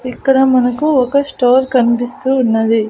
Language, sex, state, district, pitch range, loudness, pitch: Telugu, female, Andhra Pradesh, Annamaya, 245-265 Hz, -13 LUFS, 255 Hz